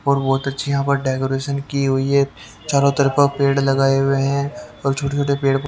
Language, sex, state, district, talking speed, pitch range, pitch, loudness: Hindi, male, Haryana, Jhajjar, 210 wpm, 135-140 Hz, 140 Hz, -19 LUFS